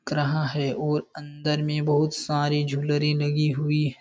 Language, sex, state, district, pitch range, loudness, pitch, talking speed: Hindi, male, Uttar Pradesh, Jalaun, 145-150 Hz, -25 LUFS, 150 Hz, 180 wpm